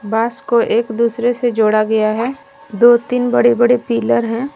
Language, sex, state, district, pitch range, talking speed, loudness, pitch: Hindi, female, Jharkhand, Deoghar, 220-245 Hz, 185 wpm, -15 LUFS, 235 Hz